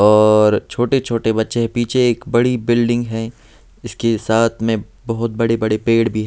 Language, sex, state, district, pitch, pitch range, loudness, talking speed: Hindi, male, Bihar, Patna, 115 Hz, 110-120 Hz, -17 LUFS, 165 wpm